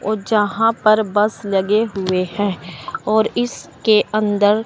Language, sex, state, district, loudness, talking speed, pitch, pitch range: Hindi, male, Chandigarh, Chandigarh, -18 LUFS, 130 wpm, 210 Hz, 200-220 Hz